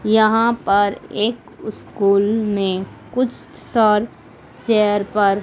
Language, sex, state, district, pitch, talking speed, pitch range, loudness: Hindi, female, Madhya Pradesh, Dhar, 210 Hz, 100 wpm, 200-225 Hz, -18 LUFS